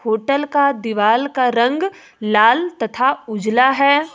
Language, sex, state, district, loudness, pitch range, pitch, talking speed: Hindi, female, Jharkhand, Ranchi, -16 LUFS, 220-280 Hz, 250 Hz, 130 wpm